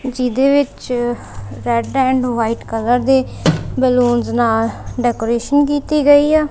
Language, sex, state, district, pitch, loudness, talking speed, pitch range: Punjabi, female, Punjab, Kapurthala, 245 Hz, -16 LUFS, 120 wpm, 230-270 Hz